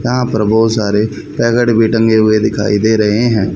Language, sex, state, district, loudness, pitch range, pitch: Hindi, male, Haryana, Rohtak, -12 LUFS, 105-115 Hz, 110 Hz